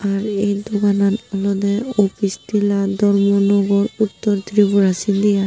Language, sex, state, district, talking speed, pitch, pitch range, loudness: Chakma, female, Tripura, Unakoti, 120 wpm, 200 Hz, 200-205 Hz, -17 LUFS